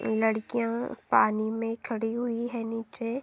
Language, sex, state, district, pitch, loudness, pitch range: Hindi, female, Uttar Pradesh, Deoria, 225 Hz, -29 LUFS, 225-235 Hz